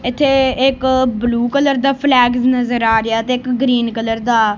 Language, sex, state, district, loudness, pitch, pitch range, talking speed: Punjabi, female, Punjab, Kapurthala, -15 LUFS, 245 Hz, 235-265 Hz, 185 wpm